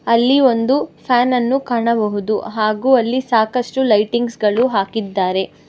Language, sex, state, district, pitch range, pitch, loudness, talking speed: Kannada, female, Karnataka, Bangalore, 215-250 Hz, 235 Hz, -16 LUFS, 115 wpm